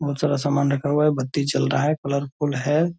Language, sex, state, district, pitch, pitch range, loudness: Hindi, male, Bihar, Purnia, 145 Hz, 140-150 Hz, -22 LUFS